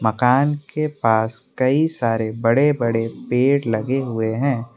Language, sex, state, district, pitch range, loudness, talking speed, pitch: Hindi, male, Assam, Kamrup Metropolitan, 115-140 Hz, -20 LUFS, 140 wpm, 125 Hz